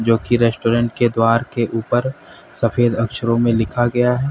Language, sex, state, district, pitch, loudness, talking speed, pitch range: Hindi, male, Uttar Pradesh, Lalitpur, 115 Hz, -18 LUFS, 165 wpm, 115-120 Hz